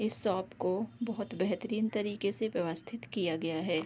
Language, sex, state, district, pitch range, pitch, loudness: Hindi, female, Bihar, Darbhanga, 180-220 Hz, 200 Hz, -34 LUFS